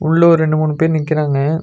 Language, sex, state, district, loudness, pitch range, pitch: Tamil, male, Tamil Nadu, Nilgiris, -14 LUFS, 155-160 Hz, 155 Hz